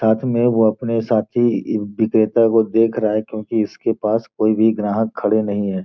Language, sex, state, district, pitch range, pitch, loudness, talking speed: Hindi, male, Bihar, Gopalganj, 110-115 Hz, 110 Hz, -18 LUFS, 195 wpm